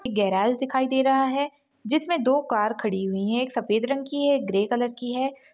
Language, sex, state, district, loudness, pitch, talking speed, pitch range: Kumaoni, female, Uttarakhand, Uttarkashi, -24 LUFS, 260 Hz, 240 wpm, 220-275 Hz